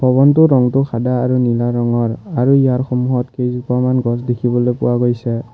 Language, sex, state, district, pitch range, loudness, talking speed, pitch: Assamese, male, Assam, Kamrup Metropolitan, 120-130 Hz, -15 LUFS, 150 wpm, 125 Hz